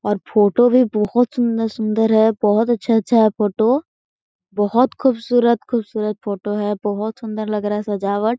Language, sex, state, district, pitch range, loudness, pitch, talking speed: Hindi, female, Chhattisgarh, Korba, 210-235 Hz, -18 LUFS, 220 Hz, 155 wpm